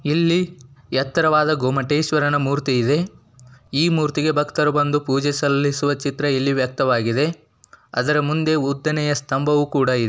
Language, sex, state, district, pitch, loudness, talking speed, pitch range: Kannada, male, Karnataka, Dakshina Kannada, 145 Hz, -20 LUFS, 120 wpm, 135-150 Hz